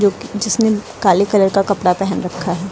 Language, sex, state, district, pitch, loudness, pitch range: Hindi, female, Uttar Pradesh, Lucknow, 195 Hz, -16 LUFS, 185-210 Hz